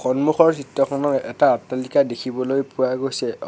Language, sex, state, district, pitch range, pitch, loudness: Assamese, male, Assam, Sonitpur, 130-140 Hz, 135 Hz, -20 LUFS